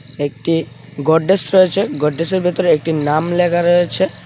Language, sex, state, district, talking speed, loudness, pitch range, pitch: Bengali, male, Tripura, West Tripura, 125 wpm, -15 LUFS, 150-180 Hz, 165 Hz